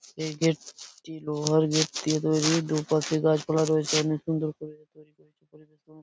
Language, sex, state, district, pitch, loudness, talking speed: Bengali, male, West Bengal, Purulia, 155 Hz, -26 LUFS, 180 wpm